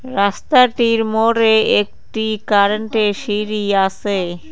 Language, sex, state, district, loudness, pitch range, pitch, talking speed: Bengali, female, West Bengal, Cooch Behar, -16 LUFS, 200-225 Hz, 215 Hz, 80 wpm